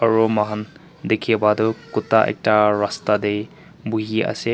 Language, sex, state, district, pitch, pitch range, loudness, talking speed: Nagamese, male, Nagaland, Kohima, 110 Hz, 105-115 Hz, -20 LUFS, 160 wpm